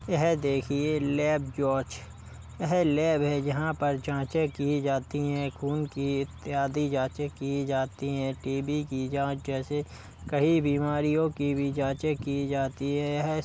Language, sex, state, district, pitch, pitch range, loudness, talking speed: Hindi, male, Uttar Pradesh, Gorakhpur, 140 Hz, 135-150 Hz, -29 LUFS, 150 wpm